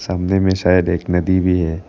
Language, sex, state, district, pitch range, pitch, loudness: Hindi, male, Arunachal Pradesh, Lower Dibang Valley, 90-95 Hz, 90 Hz, -16 LUFS